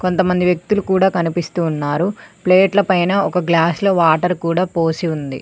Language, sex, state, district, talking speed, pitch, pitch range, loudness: Telugu, female, Telangana, Mahabubabad, 165 wpm, 180 Hz, 165-190 Hz, -16 LUFS